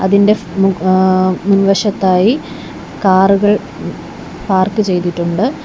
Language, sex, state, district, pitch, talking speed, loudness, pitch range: Malayalam, female, Kerala, Kollam, 195 Hz, 85 wpm, -13 LUFS, 185-205 Hz